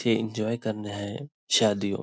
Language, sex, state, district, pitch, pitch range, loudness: Hindi, male, Maharashtra, Nagpur, 110 Hz, 100-115 Hz, -27 LUFS